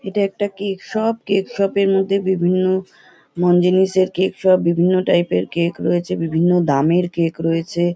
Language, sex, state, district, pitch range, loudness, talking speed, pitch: Bengali, female, West Bengal, North 24 Parganas, 175-195 Hz, -18 LUFS, 180 wpm, 185 Hz